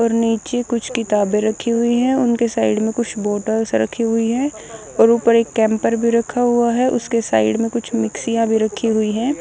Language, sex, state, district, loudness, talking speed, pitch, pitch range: Hindi, male, Odisha, Nuapada, -18 LUFS, 205 wpm, 230 Hz, 220-235 Hz